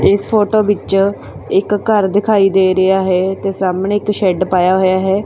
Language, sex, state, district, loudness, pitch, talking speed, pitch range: Punjabi, female, Punjab, Fazilka, -14 LUFS, 195 Hz, 185 wpm, 190-205 Hz